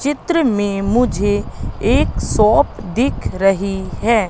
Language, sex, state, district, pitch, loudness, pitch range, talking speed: Hindi, female, Madhya Pradesh, Katni, 205 Hz, -17 LUFS, 195-245 Hz, 110 wpm